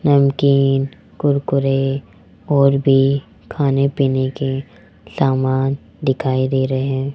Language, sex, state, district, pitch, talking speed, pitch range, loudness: Hindi, male, Rajasthan, Jaipur, 135 Hz, 100 wpm, 130-140 Hz, -17 LUFS